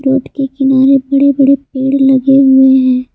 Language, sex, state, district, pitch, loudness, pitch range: Hindi, female, Jharkhand, Palamu, 270 Hz, -10 LUFS, 265-275 Hz